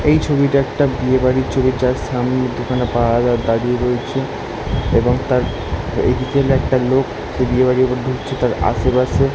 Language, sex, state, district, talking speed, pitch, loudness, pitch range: Bengali, male, West Bengal, Kolkata, 155 wpm, 130 Hz, -17 LUFS, 125-130 Hz